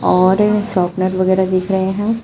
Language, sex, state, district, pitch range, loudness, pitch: Hindi, female, Uttar Pradesh, Shamli, 185-205 Hz, -15 LUFS, 190 Hz